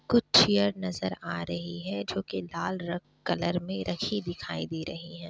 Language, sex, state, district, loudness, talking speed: Hindi, female, Bihar, Kishanganj, -29 LUFS, 205 wpm